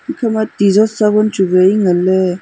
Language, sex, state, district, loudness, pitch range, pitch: Wancho, female, Arunachal Pradesh, Longding, -13 LUFS, 185-215 Hz, 205 Hz